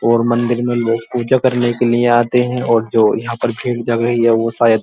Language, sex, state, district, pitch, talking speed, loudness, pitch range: Hindi, male, Uttar Pradesh, Muzaffarnagar, 120 Hz, 260 wpm, -15 LUFS, 115-120 Hz